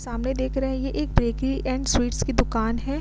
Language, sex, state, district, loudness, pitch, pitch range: Hindi, female, Bihar, Vaishali, -25 LUFS, 260 Hz, 235-265 Hz